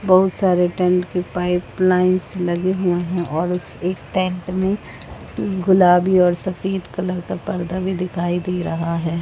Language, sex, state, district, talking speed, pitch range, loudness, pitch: Hindi, female, Goa, North and South Goa, 165 wpm, 175-185 Hz, -19 LUFS, 180 Hz